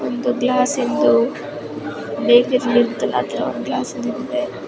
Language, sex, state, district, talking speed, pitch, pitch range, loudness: Kannada, male, Karnataka, Bijapur, 90 wpm, 240 Hz, 150-250 Hz, -19 LUFS